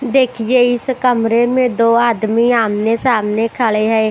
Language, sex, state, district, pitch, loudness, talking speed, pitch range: Hindi, female, Bihar, West Champaran, 235 Hz, -14 LUFS, 130 wpm, 225-250 Hz